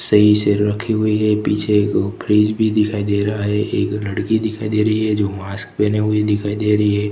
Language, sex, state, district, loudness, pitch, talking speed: Hindi, male, Gujarat, Gandhinagar, -17 LUFS, 105 Hz, 225 wpm